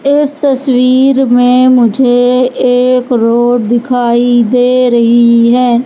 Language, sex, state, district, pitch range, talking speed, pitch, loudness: Hindi, female, Madhya Pradesh, Katni, 240-255 Hz, 100 wpm, 245 Hz, -9 LUFS